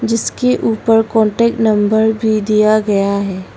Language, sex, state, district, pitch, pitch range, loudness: Hindi, female, Arunachal Pradesh, Longding, 220 Hz, 210-225 Hz, -14 LUFS